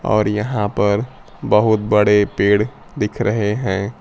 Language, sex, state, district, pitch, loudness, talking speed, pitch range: Hindi, male, Bihar, Kaimur, 105 Hz, -17 LUFS, 135 wpm, 105-110 Hz